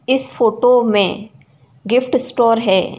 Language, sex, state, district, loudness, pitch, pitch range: Hindi, female, Uttar Pradesh, Ghazipur, -15 LUFS, 230 Hz, 200-250 Hz